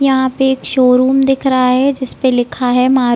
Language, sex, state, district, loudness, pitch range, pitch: Hindi, female, Bihar, East Champaran, -13 LUFS, 250-265 Hz, 260 Hz